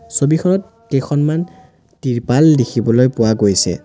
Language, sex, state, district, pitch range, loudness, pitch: Assamese, male, Assam, Sonitpur, 115-160 Hz, -15 LUFS, 135 Hz